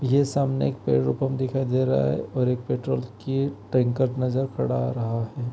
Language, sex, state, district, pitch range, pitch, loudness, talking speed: Hindi, male, Uttar Pradesh, Varanasi, 105-135 Hz, 125 Hz, -25 LUFS, 195 wpm